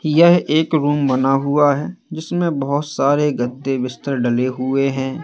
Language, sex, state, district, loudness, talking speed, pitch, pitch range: Hindi, male, Madhya Pradesh, Katni, -18 LUFS, 160 wpm, 140 Hz, 135-150 Hz